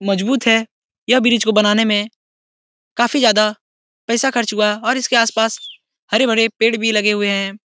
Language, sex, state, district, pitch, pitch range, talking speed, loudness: Hindi, male, Bihar, Araria, 225 Hz, 210-235 Hz, 165 wpm, -16 LUFS